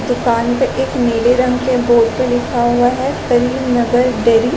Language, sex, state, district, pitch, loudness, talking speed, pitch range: Hindi, female, Chhattisgarh, Raigarh, 245 Hz, -14 LUFS, 195 wpm, 240-250 Hz